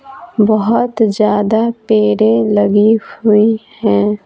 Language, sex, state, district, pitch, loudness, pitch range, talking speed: Hindi, female, Bihar, Patna, 215 Hz, -13 LUFS, 210-225 Hz, 85 wpm